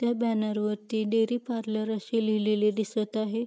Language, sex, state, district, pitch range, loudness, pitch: Marathi, female, Maharashtra, Pune, 215-230 Hz, -28 LUFS, 220 Hz